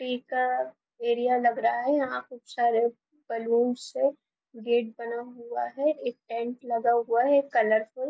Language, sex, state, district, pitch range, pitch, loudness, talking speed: Hindi, female, Bihar, Begusarai, 230-255 Hz, 235 Hz, -27 LUFS, 180 wpm